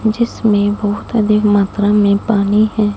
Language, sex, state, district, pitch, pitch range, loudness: Hindi, female, Punjab, Fazilka, 210 Hz, 205-215 Hz, -14 LUFS